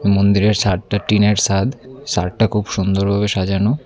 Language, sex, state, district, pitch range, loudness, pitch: Bengali, male, Tripura, Unakoti, 100-110 Hz, -17 LUFS, 105 Hz